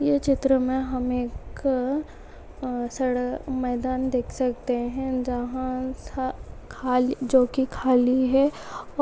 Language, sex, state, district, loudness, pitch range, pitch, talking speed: Hindi, female, Goa, North and South Goa, -25 LUFS, 250-265 Hz, 255 Hz, 105 wpm